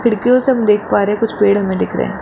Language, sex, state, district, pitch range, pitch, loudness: Hindi, male, Rajasthan, Jaipur, 205-240 Hz, 215 Hz, -14 LUFS